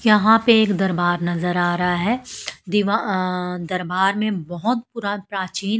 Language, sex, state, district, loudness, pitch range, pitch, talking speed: Hindi, female, Punjab, Pathankot, -20 LUFS, 180-215 Hz, 195 Hz, 145 wpm